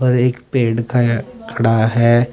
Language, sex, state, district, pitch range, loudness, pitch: Hindi, male, Uttar Pradesh, Shamli, 115-125 Hz, -16 LUFS, 120 Hz